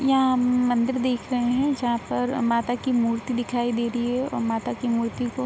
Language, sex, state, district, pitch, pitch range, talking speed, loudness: Hindi, female, Bihar, Araria, 245 Hz, 235-255 Hz, 230 wpm, -24 LUFS